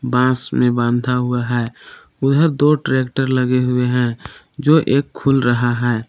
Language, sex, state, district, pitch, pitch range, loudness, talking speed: Hindi, male, Jharkhand, Palamu, 125 Hz, 120-135 Hz, -17 LUFS, 160 wpm